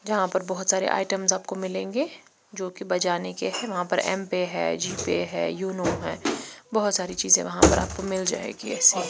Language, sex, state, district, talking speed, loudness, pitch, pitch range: Hindi, female, Bihar, Patna, 185 wpm, -25 LUFS, 185 Hz, 175-195 Hz